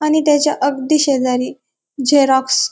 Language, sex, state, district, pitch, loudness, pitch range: Marathi, female, Maharashtra, Dhule, 280 Hz, -15 LUFS, 265-300 Hz